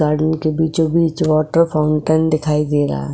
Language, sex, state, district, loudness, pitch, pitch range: Hindi, female, Maharashtra, Chandrapur, -16 LUFS, 155 Hz, 150-160 Hz